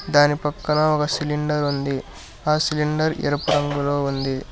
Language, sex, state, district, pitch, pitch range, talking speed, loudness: Telugu, male, Telangana, Hyderabad, 145 Hz, 140-150 Hz, 135 wpm, -22 LUFS